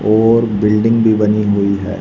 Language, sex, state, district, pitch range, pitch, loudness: Hindi, male, Haryana, Rohtak, 100-110 Hz, 105 Hz, -13 LUFS